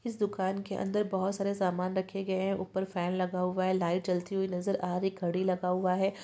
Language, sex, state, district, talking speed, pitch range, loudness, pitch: Hindi, female, Uttarakhand, Tehri Garhwal, 250 wpm, 180-195 Hz, -32 LUFS, 190 Hz